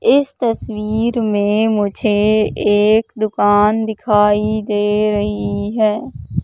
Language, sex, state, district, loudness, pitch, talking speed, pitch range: Hindi, female, Madhya Pradesh, Katni, -16 LUFS, 210 Hz, 95 wpm, 205-220 Hz